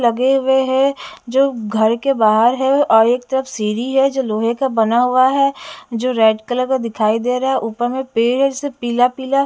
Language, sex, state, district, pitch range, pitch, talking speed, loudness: Hindi, female, Bihar, West Champaran, 230-270 Hz, 255 Hz, 215 wpm, -16 LUFS